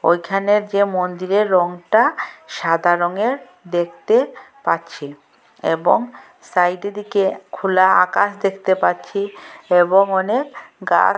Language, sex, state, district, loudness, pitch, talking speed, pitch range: Bengali, female, Assam, Hailakandi, -18 LUFS, 190 Hz, 95 wpm, 175-205 Hz